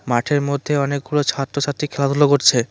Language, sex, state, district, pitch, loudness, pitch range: Bengali, male, West Bengal, Cooch Behar, 140 Hz, -18 LUFS, 135-145 Hz